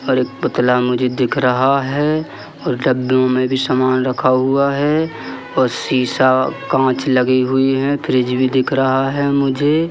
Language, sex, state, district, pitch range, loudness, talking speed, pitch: Hindi, male, Madhya Pradesh, Katni, 130-140 Hz, -16 LUFS, 165 wpm, 130 Hz